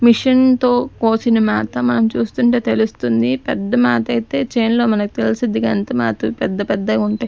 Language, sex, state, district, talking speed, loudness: Telugu, female, Andhra Pradesh, Sri Satya Sai, 140 wpm, -16 LUFS